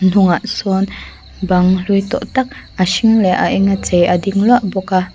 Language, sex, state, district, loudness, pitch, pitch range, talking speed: Mizo, female, Mizoram, Aizawl, -14 LUFS, 195 Hz, 185-210 Hz, 200 wpm